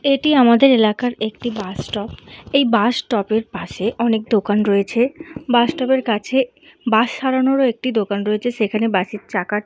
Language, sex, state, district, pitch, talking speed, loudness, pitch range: Bengali, female, West Bengal, Purulia, 235 Hz, 185 wpm, -18 LUFS, 215-260 Hz